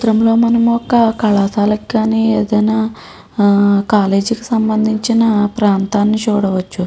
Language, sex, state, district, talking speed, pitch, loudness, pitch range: Telugu, female, Andhra Pradesh, Guntur, 105 wpm, 215 Hz, -14 LUFS, 205-225 Hz